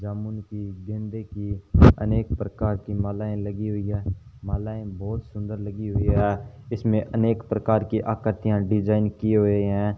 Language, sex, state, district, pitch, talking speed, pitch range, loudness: Hindi, male, Rajasthan, Bikaner, 105 Hz, 155 wpm, 100-110 Hz, -24 LUFS